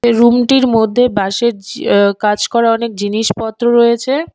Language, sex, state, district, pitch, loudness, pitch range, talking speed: Bengali, female, West Bengal, Alipurduar, 235 Hz, -13 LUFS, 215-240 Hz, 180 wpm